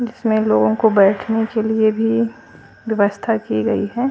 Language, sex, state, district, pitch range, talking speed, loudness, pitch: Hindi, female, Haryana, Charkhi Dadri, 200-225 Hz, 175 wpm, -17 LUFS, 220 Hz